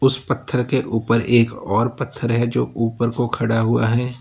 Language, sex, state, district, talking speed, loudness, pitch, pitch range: Hindi, male, Uttar Pradesh, Lalitpur, 200 wpm, -20 LUFS, 120 Hz, 115-125 Hz